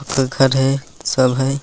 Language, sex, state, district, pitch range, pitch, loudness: Hindi, male, Chhattisgarh, Raigarh, 130-135 Hz, 135 Hz, -17 LUFS